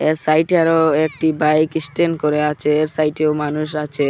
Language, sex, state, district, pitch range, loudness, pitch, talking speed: Bengali, male, Assam, Hailakandi, 150-160 Hz, -17 LUFS, 155 Hz, 205 wpm